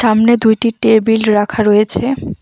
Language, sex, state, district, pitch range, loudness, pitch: Bengali, female, West Bengal, Alipurduar, 215-230 Hz, -12 LUFS, 220 Hz